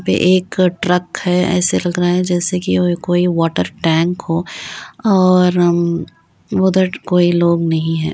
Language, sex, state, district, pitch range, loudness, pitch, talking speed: Hindi, female, Uttar Pradesh, Varanasi, 170-180 Hz, -15 LUFS, 175 Hz, 155 wpm